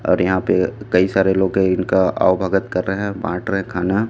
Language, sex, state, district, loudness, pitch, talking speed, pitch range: Hindi, male, Chhattisgarh, Raipur, -18 LUFS, 95 Hz, 250 wpm, 90-100 Hz